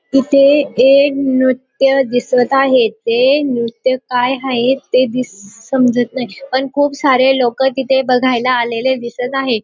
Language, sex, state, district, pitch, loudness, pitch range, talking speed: Marathi, female, Maharashtra, Dhule, 260 Hz, -14 LUFS, 245-270 Hz, 135 wpm